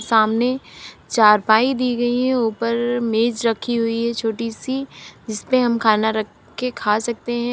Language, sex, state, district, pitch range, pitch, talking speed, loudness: Hindi, female, Uttar Pradesh, Lalitpur, 220-245 Hz, 230 Hz, 165 wpm, -19 LUFS